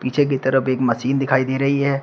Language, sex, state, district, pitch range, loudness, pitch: Hindi, male, Uttar Pradesh, Shamli, 130-140 Hz, -19 LUFS, 135 Hz